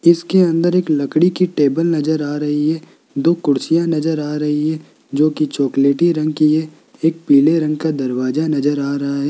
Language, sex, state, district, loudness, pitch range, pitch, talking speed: Hindi, male, Rajasthan, Jaipur, -17 LUFS, 145-165 Hz, 155 Hz, 200 wpm